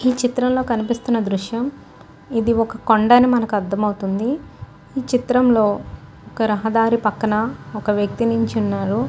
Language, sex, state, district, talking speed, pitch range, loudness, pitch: Telugu, female, Andhra Pradesh, Guntur, 140 wpm, 210-245 Hz, -19 LUFS, 225 Hz